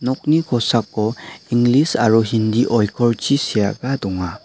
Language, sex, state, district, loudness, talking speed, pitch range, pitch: Garo, male, Meghalaya, West Garo Hills, -18 LUFS, 110 wpm, 110-130 Hz, 120 Hz